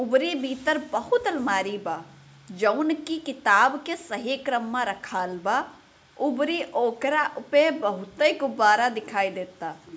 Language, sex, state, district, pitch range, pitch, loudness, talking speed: Bhojpuri, female, Bihar, Gopalganj, 200-295 Hz, 260 Hz, -25 LUFS, 125 wpm